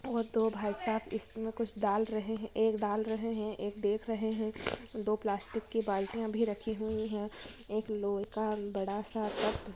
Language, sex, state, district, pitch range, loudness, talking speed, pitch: Hindi, female, Goa, North and South Goa, 210-220 Hz, -35 LUFS, 190 wpm, 215 Hz